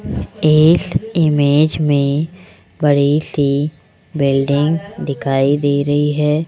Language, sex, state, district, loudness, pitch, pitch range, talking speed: Hindi, male, Rajasthan, Jaipur, -15 LUFS, 145 Hz, 140-155 Hz, 95 wpm